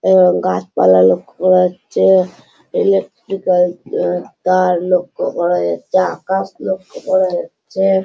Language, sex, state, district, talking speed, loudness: Bengali, male, West Bengal, Malda, 105 wpm, -15 LUFS